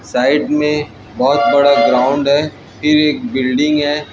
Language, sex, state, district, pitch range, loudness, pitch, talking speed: Hindi, male, Chhattisgarh, Raipur, 130-150 Hz, -14 LUFS, 145 Hz, 145 wpm